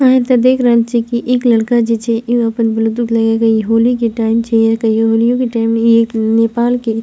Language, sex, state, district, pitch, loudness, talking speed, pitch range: Maithili, female, Bihar, Purnia, 230 Hz, -13 LUFS, 255 wpm, 225-240 Hz